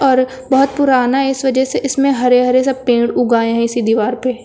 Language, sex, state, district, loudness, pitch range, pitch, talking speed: Hindi, female, Uttar Pradesh, Lucknow, -14 LUFS, 240-270 Hz, 255 Hz, 230 wpm